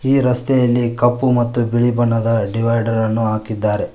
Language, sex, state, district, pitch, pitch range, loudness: Kannada, male, Karnataka, Koppal, 120 Hz, 115-120 Hz, -17 LUFS